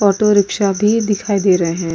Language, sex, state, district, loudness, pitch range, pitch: Hindi, female, Uttar Pradesh, Muzaffarnagar, -15 LUFS, 190-210 Hz, 200 Hz